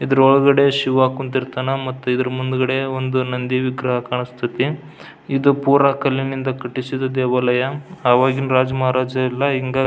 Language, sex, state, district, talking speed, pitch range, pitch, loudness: Kannada, male, Karnataka, Belgaum, 130 wpm, 130-135 Hz, 130 Hz, -18 LUFS